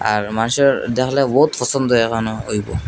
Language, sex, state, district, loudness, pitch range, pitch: Bengali, male, Assam, Hailakandi, -17 LUFS, 110-135 Hz, 120 Hz